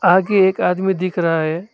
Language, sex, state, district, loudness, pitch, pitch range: Hindi, male, West Bengal, Alipurduar, -17 LUFS, 185 Hz, 170-190 Hz